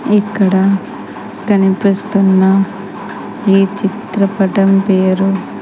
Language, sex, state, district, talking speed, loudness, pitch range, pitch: Telugu, female, Andhra Pradesh, Sri Satya Sai, 55 wpm, -13 LUFS, 195-200 Hz, 195 Hz